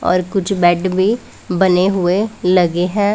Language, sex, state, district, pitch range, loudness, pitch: Hindi, female, Punjab, Pathankot, 180-195 Hz, -15 LUFS, 185 Hz